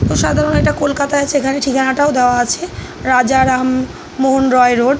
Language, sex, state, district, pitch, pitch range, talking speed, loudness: Bengali, female, West Bengal, North 24 Parganas, 265 Hz, 255-280 Hz, 170 wpm, -14 LUFS